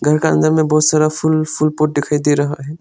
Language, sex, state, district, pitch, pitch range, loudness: Hindi, male, Arunachal Pradesh, Lower Dibang Valley, 155 Hz, 150-155 Hz, -15 LUFS